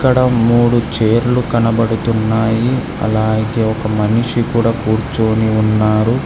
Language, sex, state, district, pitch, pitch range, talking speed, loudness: Telugu, male, Telangana, Hyderabad, 115 Hz, 110-120 Hz, 95 wpm, -14 LUFS